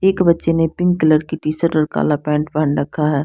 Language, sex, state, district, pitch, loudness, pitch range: Hindi, female, Bihar, Patna, 155 Hz, -17 LUFS, 150-170 Hz